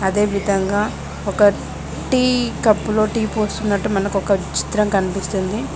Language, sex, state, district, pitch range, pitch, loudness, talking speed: Telugu, female, Telangana, Mahabubabad, 195-215 Hz, 205 Hz, -19 LUFS, 105 wpm